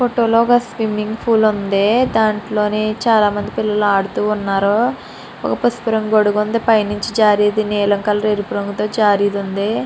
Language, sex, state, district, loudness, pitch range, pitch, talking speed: Telugu, female, Andhra Pradesh, Srikakulam, -16 LUFS, 205-220 Hz, 210 Hz, 160 wpm